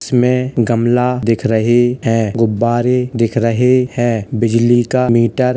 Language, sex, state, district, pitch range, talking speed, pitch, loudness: Hindi, male, Uttar Pradesh, Hamirpur, 115-125 Hz, 140 wpm, 120 Hz, -14 LUFS